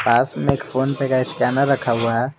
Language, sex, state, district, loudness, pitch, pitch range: Hindi, male, Jharkhand, Garhwa, -20 LUFS, 130 Hz, 125-135 Hz